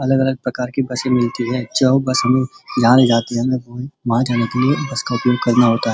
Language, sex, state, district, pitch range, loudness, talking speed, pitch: Hindi, male, Uttar Pradesh, Muzaffarnagar, 120-130 Hz, -17 LUFS, 235 wpm, 125 Hz